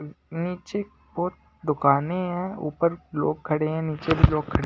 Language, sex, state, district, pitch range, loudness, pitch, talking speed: Hindi, male, Delhi, New Delhi, 150-180 Hz, -26 LUFS, 160 Hz, 155 wpm